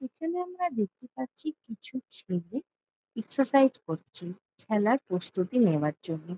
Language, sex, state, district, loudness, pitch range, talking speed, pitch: Bengali, female, West Bengal, Jalpaiguri, -30 LUFS, 180-265 Hz, 115 wpm, 225 Hz